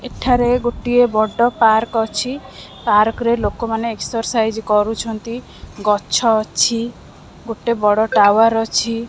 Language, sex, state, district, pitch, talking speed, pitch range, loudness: Odia, female, Odisha, Khordha, 225 Hz, 105 wpm, 220-235 Hz, -17 LUFS